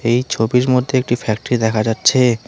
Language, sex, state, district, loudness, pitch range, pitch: Bengali, male, West Bengal, Alipurduar, -16 LUFS, 115-125 Hz, 120 Hz